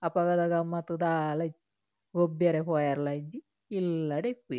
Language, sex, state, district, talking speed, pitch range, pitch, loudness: Tulu, female, Karnataka, Dakshina Kannada, 120 wpm, 150-175 Hz, 165 Hz, -30 LUFS